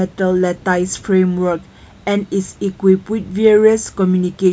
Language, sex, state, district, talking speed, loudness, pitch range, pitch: English, female, Nagaland, Kohima, 130 wpm, -16 LUFS, 185-200 Hz, 190 Hz